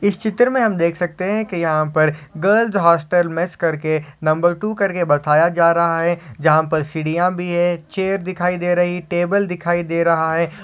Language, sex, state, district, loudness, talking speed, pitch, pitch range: Hindi, male, Maharashtra, Solapur, -18 LUFS, 195 wpm, 175 Hz, 160-180 Hz